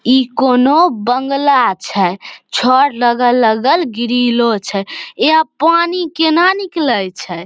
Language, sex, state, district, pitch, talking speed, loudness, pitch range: Maithili, female, Bihar, Samastipur, 250 Hz, 105 wpm, -13 LUFS, 230-315 Hz